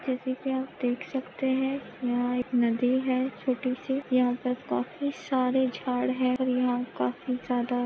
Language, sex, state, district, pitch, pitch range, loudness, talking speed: Hindi, female, Maharashtra, Pune, 255 Hz, 245-260 Hz, -28 LUFS, 170 wpm